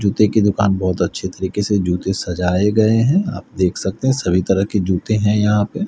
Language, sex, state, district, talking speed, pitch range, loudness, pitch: Hindi, male, Haryana, Rohtak, 225 wpm, 95-105 Hz, -17 LUFS, 100 Hz